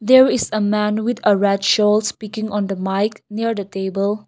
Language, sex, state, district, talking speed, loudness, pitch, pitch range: English, female, Nagaland, Kohima, 195 wpm, -18 LUFS, 210 Hz, 200-220 Hz